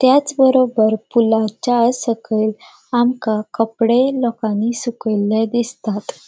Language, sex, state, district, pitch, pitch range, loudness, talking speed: Konkani, female, Goa, North and South Goa, 230 Hz, 220-245 Hz, -17 LUFS, 85 wpm